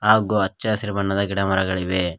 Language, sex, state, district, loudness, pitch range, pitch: Kannada, male, Karnataka, Koppal, -21 LUFS, 95-105 Hz, 100 Hz